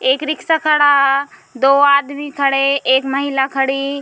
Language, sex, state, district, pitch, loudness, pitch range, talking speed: Hindi, female, Bihar, Bhagalpur, 275 Hz, -14 LUFS, 270-285 Hz, 135 wpm